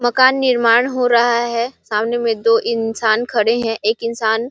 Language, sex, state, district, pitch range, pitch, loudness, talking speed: Hindi, female, Chhattisgarh, Sarguja, 225-240 Hz, 235 Hz, -16 LUFS, 185 wpm